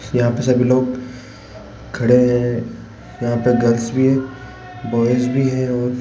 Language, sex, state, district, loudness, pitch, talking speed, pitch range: Hindi, male, Rajasthan, Jaipur, -17 LUFS, 125 Hz, 160 wpm, 120-125 Hz